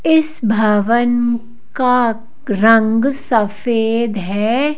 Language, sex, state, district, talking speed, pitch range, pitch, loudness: Hindi, female, Madhya Pradesh, Bhopal, 75 wpm, 220-250 Hz, 230 Hz, -15 LUFS